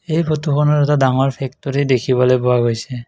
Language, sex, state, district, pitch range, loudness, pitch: Assamese, male, Assam, Kamrup Metropolitan, 125-150 Hz, -16 LUFS, 135 Hz